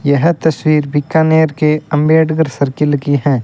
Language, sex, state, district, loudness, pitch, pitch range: Hindi, male, Rajasthan, Bikaner, -13 LUFS, 150 Hz, 145-160 Hz